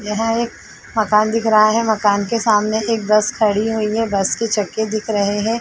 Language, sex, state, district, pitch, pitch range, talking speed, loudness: Hindi, female, Uttar Pradesh, Jalaun, 215 Hz, 210-225 Hz, 215 wpm, -17 LUFS